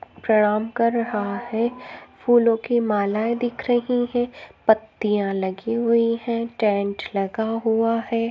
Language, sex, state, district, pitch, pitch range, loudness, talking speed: Hindi, female, Maharashtra, Nagpur, 230 Hz, 210-235 Hz, -22 LUFS, 130 wpm